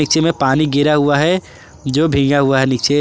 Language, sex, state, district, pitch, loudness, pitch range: Hindi, male, Jharkhand, Garhwa, 145 Hz, -15 LUFS, 135-155 Hz